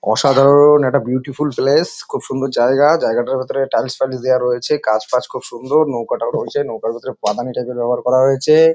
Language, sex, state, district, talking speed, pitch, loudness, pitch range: Bengali, male, West Bengal, North 24 Parganas, 190 wpm, 130 Hz, -16 LUFS, 120-140 Hz